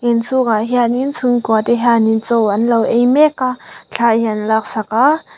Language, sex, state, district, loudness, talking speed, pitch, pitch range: Mizo, female, Mizoram, Aizawl, -14 LUFS, 190 wpm, 235 Hz, 220-250 Hz